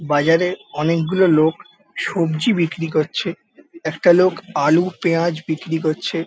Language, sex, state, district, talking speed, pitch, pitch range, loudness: Bengali, male, West Bengal, Jalpaiguri, 115 wpm, 165 Hz, 160-180 Hz, -18 LUFS